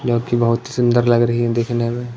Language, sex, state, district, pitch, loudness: Hindi, male, Punjab, Pathankot, 120 Hz, -17 LUFS